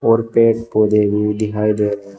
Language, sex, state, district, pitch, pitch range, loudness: Hindi, male, Uttar Pradesh, Shamli, 105 Hz, 105-115 Hz, -16 LUFS